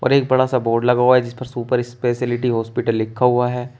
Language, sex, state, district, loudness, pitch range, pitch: Hindi, male, Uttar Pradesh, Shamli, -18 LUFS, 120-125 Hz, 125 Hz